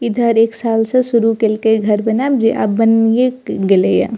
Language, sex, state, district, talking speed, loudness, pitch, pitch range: Maithili, female, Bihar, Purnia, 230 wpm, -14 LUFS, 225 Hz, 220-235 Hz